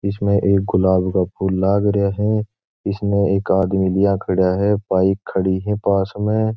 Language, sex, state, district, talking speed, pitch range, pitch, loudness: Marwari, male, Rajasthan, Churu, 175 wpm, 95-100 Hz, 100 Hz, -18 LUFS